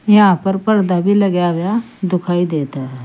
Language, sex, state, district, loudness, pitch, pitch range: Hindi, female, Uttar Pradesh, Saharanpur, -15 LUFS, 185 Hz, 175-205 Hz